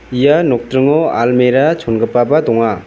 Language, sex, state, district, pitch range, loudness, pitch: Garo, male, Meghalaya, West Garo Hills, 115-145 Hz, -12 LUFS, 125 Hz